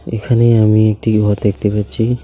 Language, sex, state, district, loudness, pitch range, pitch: Bengali, male, West Bengal, Alipurduar, -14 LUFS, 105-115 Hz, 110 Hz